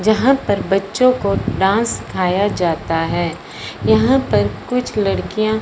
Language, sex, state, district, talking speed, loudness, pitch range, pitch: Hindi, female, Punjab, Fazilka, 130 wpm, -17 LUFS, 165-215 Hz, 195 Hz